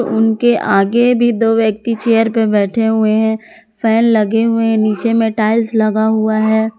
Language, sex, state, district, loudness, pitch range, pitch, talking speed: Hindi, female, Jharkhand, Palamu, -13 LUFS, 220-230 Hz, 225 Hz, 175 wpm